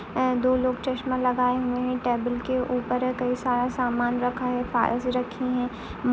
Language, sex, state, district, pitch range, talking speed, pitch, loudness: Hindi, female, Uttar Pradesh, Etah, 245-255 Hz, 205 wpm, 250 Hz, -26 LUFS